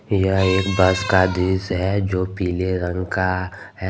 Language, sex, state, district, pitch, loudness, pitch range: Hindi, male, Jharkhand, Deoghar, 95 Hz, -20 LUFS, 90-95 Hz